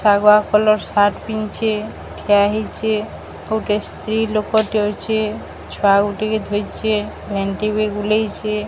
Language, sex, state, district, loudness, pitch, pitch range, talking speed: Odia, female, Odisha, Sambalpur, -18 LUFS, 215 Hz, 205-215 Hz, 120 wpm